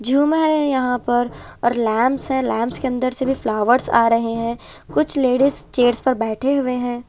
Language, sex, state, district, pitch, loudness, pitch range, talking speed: Hindi, female, Punjab, Kapurthala, 250 Hz, -19 LUFS, 240-265 Hz, 205 wpm